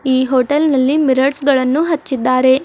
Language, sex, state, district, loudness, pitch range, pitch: Kannada, female, Karnataka, Bidar, -14 LUFS, 260-290 Hz, 265 Hz